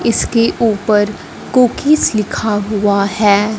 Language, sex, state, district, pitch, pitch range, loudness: Hindi, female, Punjab, Fazilka, 215 Hz, 205-230 Hz, -14 LUFS